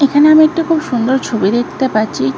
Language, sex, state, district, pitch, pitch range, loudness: Bengali, female, West Bengal, North 24 Parganas, 265 Hz, 220-310 Hz, -13 LUFS